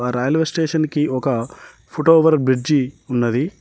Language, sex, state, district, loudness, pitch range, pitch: Telugu, male, Telangana, Mahabubabad, -18 LUFS, 125-160 Hz, 145 Hz